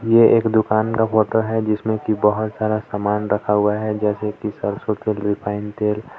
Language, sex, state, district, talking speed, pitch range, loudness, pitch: Hindi, male, Jharkhand, Palamu, 195 wpm, 105-110 Hz, -19 LUFS, 110 Hz